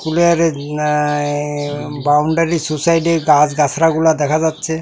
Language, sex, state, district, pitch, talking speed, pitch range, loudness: Bengali, male, Tripura, South Tripura, 155 Hz, 85 wpm, 150-165 Hz, -15 LUFS